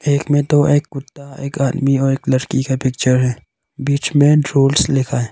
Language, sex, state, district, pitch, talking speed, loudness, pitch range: Hindi, male, Arunachal Pradesh, Longding, 140 Hz, 205 wpm, -16 LUFS, 135-145 Hz